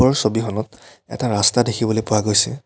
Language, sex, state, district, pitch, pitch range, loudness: Assamese, male, Assam, Kamrup Metropolitan, 110 Hz, 105-120 Hz, -18 LUFS